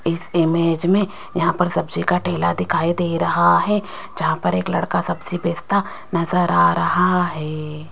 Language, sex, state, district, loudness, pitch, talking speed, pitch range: Hindi, female, Rajasthan, Jaipur, -19 LUFS, 170 Hz, 165 wpm, 155-180 Hz